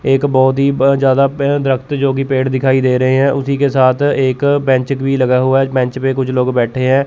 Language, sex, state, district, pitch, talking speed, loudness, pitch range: Hindi, male, Chandigarh, Chandigarh, 135 Hz, 245 wpm, -13 LUFS, 130-140 Hz